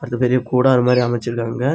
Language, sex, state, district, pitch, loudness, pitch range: Tamil, male, Tamil Nadu, Kanyakumari, 125 Hz, -17 LUFS, 120-130 Hz